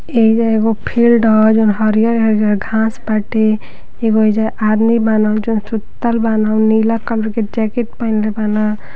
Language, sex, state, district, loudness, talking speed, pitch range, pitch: Bhojpuri, female, Uttar Pradesh, Deoria, -14 LUFS, 140 wpm, 215-225 Hz, 220 Hz